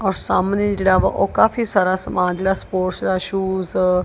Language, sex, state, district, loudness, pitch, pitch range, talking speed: Punjabi, female, Punjab, Kapurthala, -19 LUFS, 190 Hz, 185-195 Hz, 190 wpm